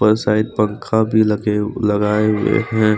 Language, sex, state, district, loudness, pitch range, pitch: Hindi, male, Jharkhand, Deoghar, -17 LUFS, 105-110 Hz, 105 Hz